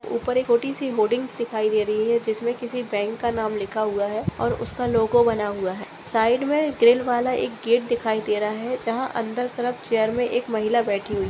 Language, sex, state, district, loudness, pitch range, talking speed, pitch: Hindi, female, Maharashtra, Sindhudurg, -23 LUFS, 215-245 Hz, 230 wpm, 230 Hz